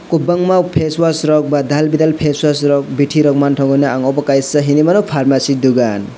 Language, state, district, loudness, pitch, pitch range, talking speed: Kokborok, Tripura, West Tripura, -13 LUFS, 145 Hz, 140-155 Hz, 165 wpm